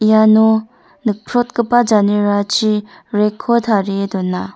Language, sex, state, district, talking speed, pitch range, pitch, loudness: Garo, female, Meghalaya, North Garo Hills, 80 wpm, 205-230 Hz, 215 Hz, -15 LUFS